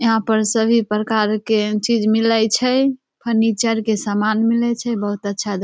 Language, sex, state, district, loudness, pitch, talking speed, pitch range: Maithili, female, Bihar, Samastipur, -18 LUFS, 225 Hz, 180 wpm, 210-230 Hz